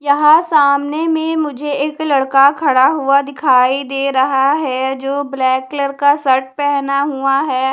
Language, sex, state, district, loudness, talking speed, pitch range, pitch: Hindi, female, Haryana, Charkhi Dadri, -14 LUFS, 155 wpm, 270-290 Hz, 280 Hz